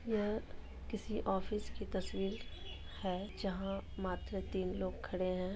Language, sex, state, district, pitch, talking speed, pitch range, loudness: Hindi, female, Jharkhand, Sahebganj, 195 Hz, 130 wpm, 185-210 Hz, -41 LUFS